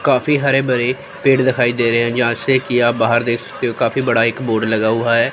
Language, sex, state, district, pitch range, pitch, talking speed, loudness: Hindi, female, Chandigarh, Chandigarh, 115-130 Hz, 120 Hz, 245 wpm, -16 LUFS